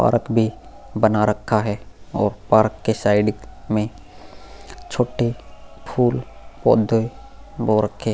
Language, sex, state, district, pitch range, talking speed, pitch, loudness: Hindi, male, Goa, North and South Goa, 105-115 Hz, 120 wpm, 110 Hz, -20 LUFS